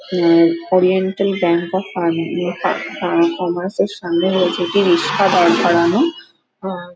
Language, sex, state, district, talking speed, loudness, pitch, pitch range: Bengali, female, West Bengal, Dakshin Dinajpur, 140 wpm, -16 LUFS, 180 Hz, 170-190 Hz